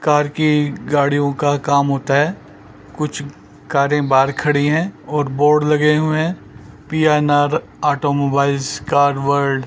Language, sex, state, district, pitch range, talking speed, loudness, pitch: Hindi, male, Chandigarh, Chandigarh, 140-150 Hz, 135 wpm, -17 LUFS, 145 Hz